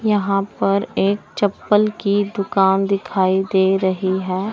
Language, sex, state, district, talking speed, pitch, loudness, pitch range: Hindi, male, Chandigarh, Chandigarh, 130 wpm, 195 Hz, -18 LUFS, 190-205 Hz